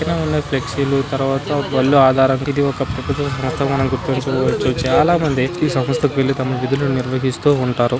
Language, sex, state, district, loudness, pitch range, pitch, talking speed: Telugu, male, Andhra Pradesh, Guntur, -17 LUFS, 130-140 Hz, 135 Hz, 150 wpm